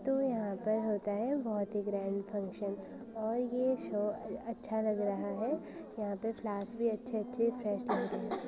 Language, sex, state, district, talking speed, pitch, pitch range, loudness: Hindi, female, Uttarakhand, Uttarkashi, 185 wpm, 215 Hz, 205-230 Hz, -35 LUFS